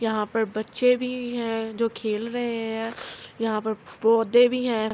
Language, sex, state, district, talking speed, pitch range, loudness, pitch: Urdu, female, Andhra Pradesh, Anantapur, 170 wpm, 220-240 Hz, -25 LUFS, 225 Hz